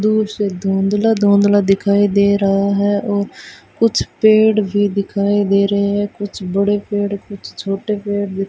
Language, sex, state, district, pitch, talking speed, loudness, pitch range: Hindi, female, Rajasthan, Bikaner, 205 Hz, 165 wpm, -16 LUFS, 200-205 Hz